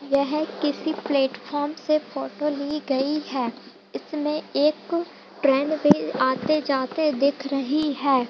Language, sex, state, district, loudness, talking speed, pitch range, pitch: Hindi, female, Bihar, Purnia, -24 LUFS, 125 wpm, 275-305 Hz, 290 Hz